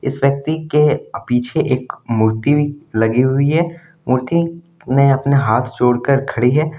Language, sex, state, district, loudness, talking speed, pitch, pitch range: Hindi, male, Jharkhand, Deoghar, -16 LUFS, 150 wpm, 140 Hz, 125-155 Hz